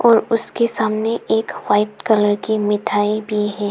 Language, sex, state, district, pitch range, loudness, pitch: Hindi, female, Arunachal Pradesh, Papum Pare, 210-225 Hz, -18 LUFS, 215 Hz